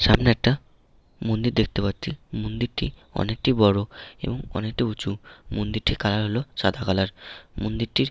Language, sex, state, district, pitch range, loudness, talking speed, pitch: Bengali, male, West Bengal, Malda, 100-115 Hz, -25 LUFS, 125 wpm, 110 Hz